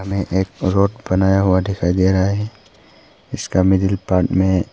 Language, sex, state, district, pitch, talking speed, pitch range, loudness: Hindi, male, Arunachal Pradesh, Papum Pare, 95 Hz, 165 wpm, 95-100 Hz, -17 LUFS